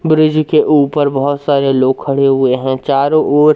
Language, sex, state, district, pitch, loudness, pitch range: Hindi, male, Madhya Pradesh, Umaria, 140 Hz, -12 LUFS, 135-150 Hz